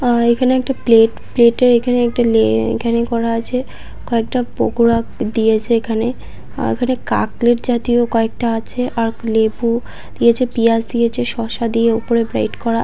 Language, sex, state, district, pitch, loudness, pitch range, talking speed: Bengali, female, West Bengal, Purulia, 235 Hz, -16 LUFS, 230-240 Hz, 160 wpm